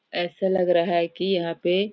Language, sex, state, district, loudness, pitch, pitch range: Hindi, female, Chhattisgarh, Raigarh, -23 LUFS, 175 Hz, 170-190 Hz